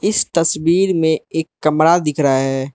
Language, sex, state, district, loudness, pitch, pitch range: Hindi, male, Manipur, Imphal West, -16 LUFS, 160 Hz, 150-170 Hz